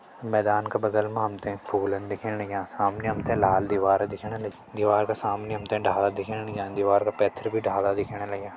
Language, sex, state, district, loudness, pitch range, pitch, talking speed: Hindi, male, Uttarakhand, Tehri Garhwal, -26 LUFS, 100-105 Hz, 100 Hz, 215 wpm